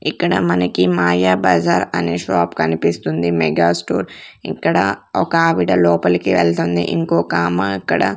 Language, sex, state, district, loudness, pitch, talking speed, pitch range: Telugu, female, Andhra Pradesh, Sri Satya Sai, -16 LUFS, 85 Hz, 115 wpm, 85-90 Hz